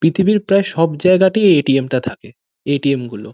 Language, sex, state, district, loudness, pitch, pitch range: Bengali, male, West Bengal, North 24 Parganas, -15 LUFS, 160 Hz, 135-190 Hz